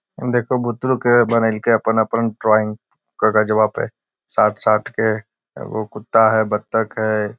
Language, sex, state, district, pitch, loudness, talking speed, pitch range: Magahi, male, Bihar, Gaya, 110 Hz, -18 LUFS, 120 wpm, 110-115 Hz